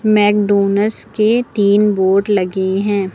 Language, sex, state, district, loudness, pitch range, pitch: Hindi, female, Uttar Pradesh, Lucknow, -14 LUFS, 195-210 Hz, 205 Hz